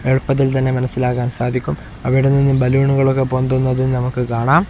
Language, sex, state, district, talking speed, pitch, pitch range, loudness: Malayalam, male, Kerala, Kozhikode, 115 wpm, 130 Hz, 125-135 Hz, -17 LUFS